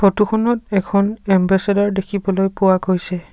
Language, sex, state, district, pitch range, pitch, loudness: Assamese, male, Assam, Sonitpur, 190-205 Hz, 195 Hz, -17 LUFS